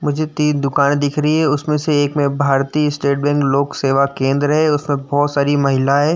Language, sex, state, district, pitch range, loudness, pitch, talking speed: Hindi, male, Uttar Pradesh, Jyotiba Phule Nagar, 140-150 Hz, -16 LUFS, 145 Hz, 205 wpm